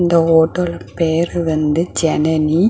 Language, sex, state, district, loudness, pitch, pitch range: Tamil, female, Tamil Nadu, Kanyakumari, -16 LUFS, 165 Hz, 160-170 Hz